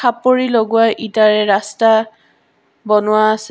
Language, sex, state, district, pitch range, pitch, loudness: Assamese, female, Assam, Sonitpur, 215-225 Hz, 220 Hz, -14 LUFS